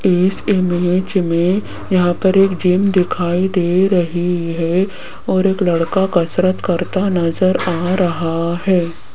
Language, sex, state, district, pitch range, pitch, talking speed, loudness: Hindi, female, Rajasthan, Jaipur, 175-190 Hz, 180 Hz, 130 wpm, -16 LUFS